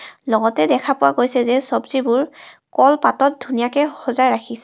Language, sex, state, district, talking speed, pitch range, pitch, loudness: Assamese, female, Assam, Kamrup Metropolitan, 155 wpm, 235-270 Hz, 250 Hz, -17 LUFS